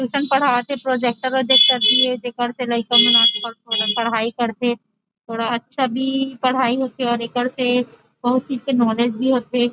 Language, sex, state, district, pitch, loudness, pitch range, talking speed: Chhattisgarhi, female, Chhattisgarh, Rajnandgaon, 245 Hz, -18 LUFS, 235-260 Hz, 175 wpm